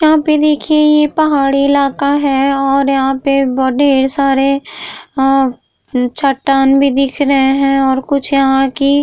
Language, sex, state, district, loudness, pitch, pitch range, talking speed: Hindi, female, Uttar Pradesh, Etah, -12 LUFS, 275 Hz, 270-285 Hz, 155 wpm